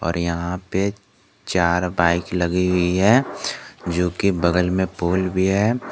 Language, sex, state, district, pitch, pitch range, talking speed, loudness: Hindi, male, Jharkhand, Garhwa, 90 Hz, 85-100 Hz, 140 wpm, -20 LUFS